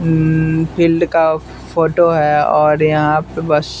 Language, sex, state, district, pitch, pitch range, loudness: Hindi, male, Bihar, West Champaran, 160 Hz, 150-165 Hz, -14 LUFS